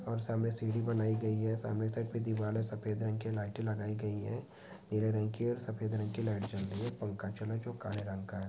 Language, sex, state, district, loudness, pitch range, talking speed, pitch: Hindi, male, Bihar, Sitamarhi, -37 LUFS, 105-115 Hz, 270 wpm, 110 Hz